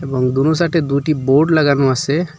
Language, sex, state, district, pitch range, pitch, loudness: Bengali, male, Assam, Hailakandi, 135-155 Hz, 145 Hz, -15 LUFS